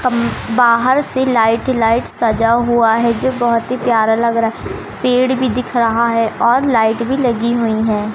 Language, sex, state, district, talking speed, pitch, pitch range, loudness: Hindi, female, Madhya Pradesh, Umaria, 185 wpm, 235 Hz, 225-250 Hz, -14 LUFS